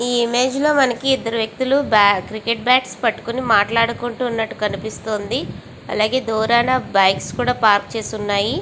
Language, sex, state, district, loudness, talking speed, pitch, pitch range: Telugu, female, Andhra Pradesh, Visakhapatnam, -18 LUFS, 140 wpm, 230 Hz, 215-250 Hz